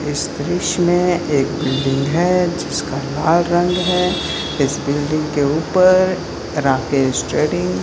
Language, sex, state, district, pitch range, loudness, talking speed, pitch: Hindi, male, Bihar, Saran, 140-175 Hz, -17 LUFS, 130 wpm, 155 Hz